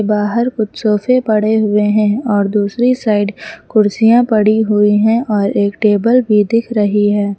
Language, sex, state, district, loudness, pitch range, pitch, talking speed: Hindi, female, Uttar Pradesh, Lucknow, -13 LUFS, 205-225 Hz, 210 Hz, 165 wpm